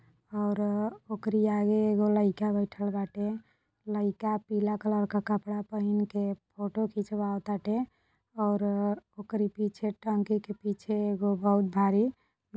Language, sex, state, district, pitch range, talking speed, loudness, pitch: Bhojpuri, female, Uttar Pradesh, Deoria, 205-210 Hz, 120 wpm, -30 LUFS, 210 Hz